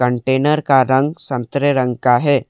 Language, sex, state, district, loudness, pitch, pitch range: Hindi, male, Assam, Kamrup Metropolitan, -16 LUFS, 130 Hz, 125-140 Hz